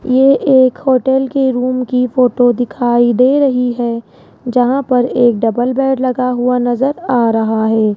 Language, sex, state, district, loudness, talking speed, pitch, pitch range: Hindi, female, Rajasthan, Jaipur, -13 LUFS, 165 wpm, 250 Hz, 240-260 Hz